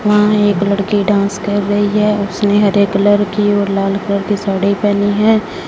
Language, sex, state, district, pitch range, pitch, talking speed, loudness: Hindi, female, Punjab, Fazilka, 200-205 Hz, 205 Hz, 190 wpm, -14 LUFS